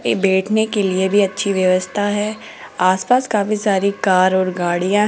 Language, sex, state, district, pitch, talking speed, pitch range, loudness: Hindi, female, Rajasthan, Jaipur, 200 Hz, 175 wpm, 185-210 Hz, -17 LUFS